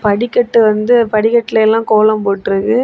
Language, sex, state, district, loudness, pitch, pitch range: Tamil, female, Tamil Nadu, Kanyakumari, -12 LUFS, 220 Hz, 215-235 Hz